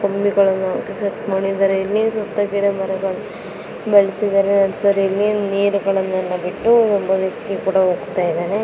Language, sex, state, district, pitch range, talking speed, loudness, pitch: Kannada, female, Karnataka, Belgaum, 190-205 Hz, 75 wpm, -18 LUFS, 195 Hz